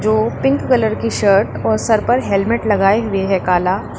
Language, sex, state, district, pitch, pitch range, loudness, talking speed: Hindi, female, Uttar Pradesh, Lalitpur, 205 Hz, 190-220 Hz, -16 LUFS, 195 wpm